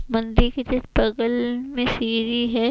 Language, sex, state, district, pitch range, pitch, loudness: Hindi, female, Chhattisgarh, Raipur, 230-250 Hz, 240 Hz, -23 LUFS